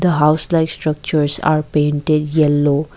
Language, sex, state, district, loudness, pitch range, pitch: English, female, Assam, Kamrup Metropolitan, -16 LUFS, 145-155 Hz, 155 Hz